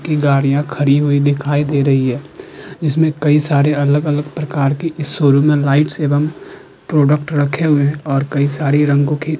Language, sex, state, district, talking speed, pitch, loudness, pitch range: Hindi, male, Uttarakhand, Tehri Garhwal, 185 wpm, 145 Hz, -15 LUFS, 140-150 Hz